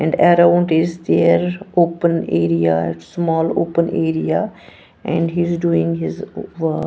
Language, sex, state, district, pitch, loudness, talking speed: English, female, Punjab, Pathankot, 165 Hz, -17 LUFS, 130 wpm